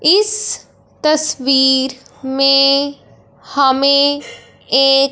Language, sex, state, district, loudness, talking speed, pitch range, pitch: Hindi, female, Punjab, Fazilka, -13 LUFS, 60 wpm, 270-285 Hz, 275 Hz